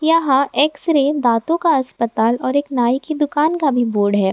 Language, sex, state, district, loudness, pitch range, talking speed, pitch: Hindi, female, Jharkhand, Ranchi, -17 LUFS, 240-305 Hz, 210 wpm, 275 Hz